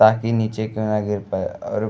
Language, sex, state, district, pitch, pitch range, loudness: Bhojpuri, male, Uttar Pradesh, Gorakhpur, 110 Hz, 105-110 Hz, -22 LUFS